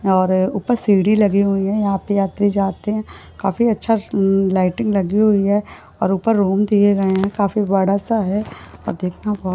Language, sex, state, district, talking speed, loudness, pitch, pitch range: Hindi, female, Maharashtra, Nagpur, 180 wpm, -18 LUFS, 200 Hz, 195-210 Hz